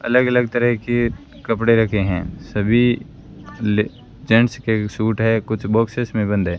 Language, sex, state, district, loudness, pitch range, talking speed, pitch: Hindi, female, Rajasthan, Bikaner, -19 LUFS, 105-120 Hz, 155 wpm, 115 Hz